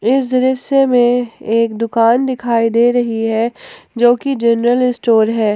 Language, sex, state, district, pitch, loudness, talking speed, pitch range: Hindi, female, Jharkhand, Ranchi, 240 Hz, -14 LUFS, 150 wpm, 230-250 Hz